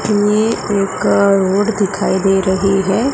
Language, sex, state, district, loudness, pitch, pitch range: Hindi, male, Gujarat, Gandhinagar, -14 LUFS, 200 Hz, 195-210 Hz